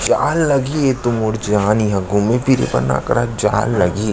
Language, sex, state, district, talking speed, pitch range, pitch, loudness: Chhattisgarhi, male, Chhattisgarh, Sarguja, 220 wpm, 105-130 Hz, 110 Hz, -16 LUFS